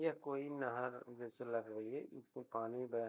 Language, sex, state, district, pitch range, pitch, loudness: Hindi, male, Uttar Pradesh, Deoria, 115-130 Hz, 125 Hz, -45 LUFS